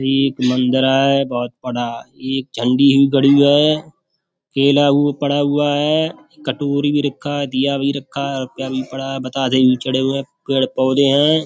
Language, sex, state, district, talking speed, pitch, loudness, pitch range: Hindi, male, Uttar Pradesh, Budaun, 185 wpm, 140 Hz, -17 LUFS, 130-145 Hz